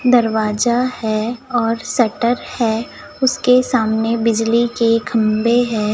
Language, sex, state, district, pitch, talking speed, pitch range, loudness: Hindi, male, Chhattisgarh, Raipur, 230 Hz, 110 wpm, 225-245 Hz, -17 LUFS